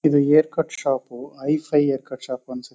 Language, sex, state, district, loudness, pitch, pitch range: Kannada, male, Karnataka, Chamarajanagar, -22 LUFS, 140 Hz, 130-150 Hz